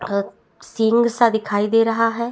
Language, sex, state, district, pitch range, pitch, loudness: Hindi, female, Chhattisgarh, Bastar, 210-235 Hz, 225 Hz, -18 LUFS